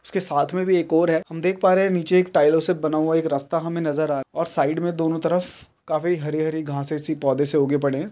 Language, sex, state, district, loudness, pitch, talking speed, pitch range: Hindi, male, Bihar, Jamui, -22 LUFS, 160 Hz, 280 wpm, 150-175 Hz